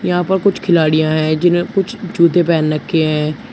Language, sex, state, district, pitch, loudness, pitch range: Hindi, male, Uttar Pradesh, Shamli, 170 Hz, -15 LUFS, 155-180 Hz